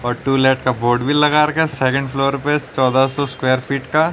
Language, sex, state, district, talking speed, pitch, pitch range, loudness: Hindi, male, Haryana, Rohtak, 215 wpm, 135 Hz, 130-145 Hz, -17 LUFS